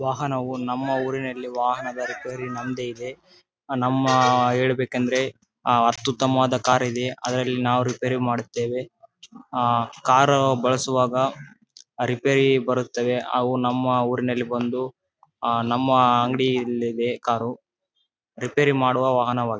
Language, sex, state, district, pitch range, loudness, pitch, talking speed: Kannada, male, Karnataka, Bellary, 125-130 Hz, -22 LUFS, 125 Hz, 115 wpm